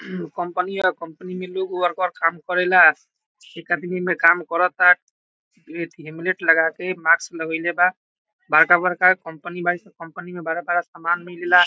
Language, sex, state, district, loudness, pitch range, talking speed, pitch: Bhojpuri, male, Bihar, Saran, -20 LUFS, 170-185 Hz, 170 wpm, 175 Hz